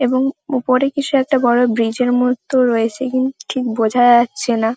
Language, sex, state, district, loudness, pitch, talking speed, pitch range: Bengali, female, West Bengal, Paschim Medinipur, -16 LUFS, 250 Hz, 190 wpm, 240-260 Hz